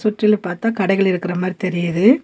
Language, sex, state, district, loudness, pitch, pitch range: Tamil, female, Tamil Nadu, Nilgiris, -18 LUFS, 190 Hz, 180-215 Hz